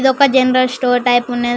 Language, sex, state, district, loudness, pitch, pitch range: Telugu, female, Andhra Pradesh, Chittoor, -13 LUFS, 250 Hz, 245-260 Hz